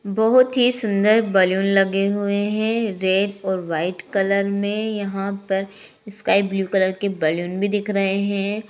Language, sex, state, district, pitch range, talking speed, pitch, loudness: Hindi, female, Jharkhand, Sahebganj, 195-210 Hz, 160 wpm, 200 Hz, -20 LUFS